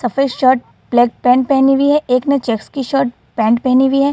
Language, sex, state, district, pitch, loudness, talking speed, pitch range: Hindi, female, Bihar, Gaya, 260 Hz, -14 LUFS, 230 wpm, 245-275 Hz